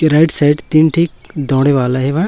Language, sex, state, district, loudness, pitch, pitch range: Hindi, male, Chhattisgarh, Raipur, -13 LUFS, 150 Hz, 135-160 Hz